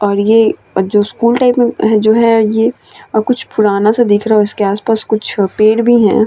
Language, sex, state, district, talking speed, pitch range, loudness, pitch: Hindi, female, Bihar, Vaishali, 230 wpm, 210-230 Hz, -12 LUFS, 220 Hz